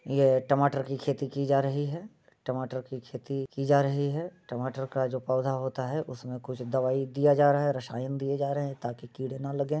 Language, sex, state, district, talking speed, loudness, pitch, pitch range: Hindi, male, Bihar, Muzaffarpur, 225 wpm, -29 LUFS, 135 Hz, 130-140 Hz